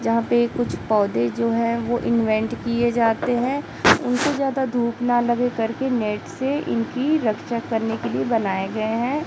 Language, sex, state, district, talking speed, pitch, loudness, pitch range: Hindi, female, Chhattisgarh, Raipur, 175 wpm, 235 Hz, -22 LUFS, 225-245 Hz